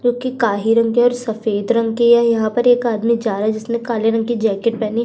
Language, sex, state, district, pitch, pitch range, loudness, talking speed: Hindi, female, Uttar Pradesh, Budaun, 230 Hz, 220-235 Hz, -17 LUFS, 275 wpm